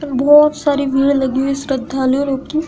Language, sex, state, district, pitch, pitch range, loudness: Hindi, female, Uttar Pradesh, Hamirpur, 275 Hz, 270-290 Hz, -15 LUFS